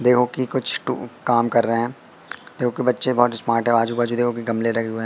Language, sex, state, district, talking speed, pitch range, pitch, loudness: Hindi, male, Madhya Pradesh, Katni, 260 wpm, 115-125 Hz, 120 Hz, -21 LUFS